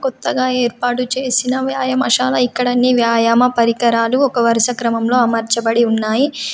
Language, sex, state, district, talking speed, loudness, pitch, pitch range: Telugu, female, Telangana, Komaram Bheem, 120 wpm, -15 LUFS, 245 Hz, 230-255 Hz